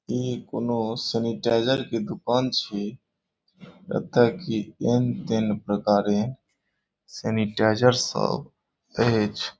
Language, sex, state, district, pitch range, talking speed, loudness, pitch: Maithili, male, Bihar, Saharsa, 105-120 Hz, 95 wpm, -25 LUFS, 115 Hz